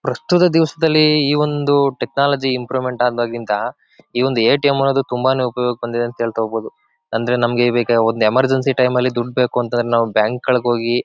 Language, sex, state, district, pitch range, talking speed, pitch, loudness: Kannada, male, Karnataka, Chamarajanagar, 120-135 Hz, 180 wpm, 125 Hz, -17 LUFS